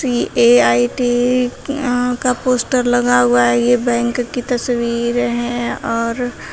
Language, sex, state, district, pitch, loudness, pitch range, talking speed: Hindi, female, Uttar Pradesh, Shamli, 240 Hz, -16 LUFS, 230-245 Hz, 110 wpm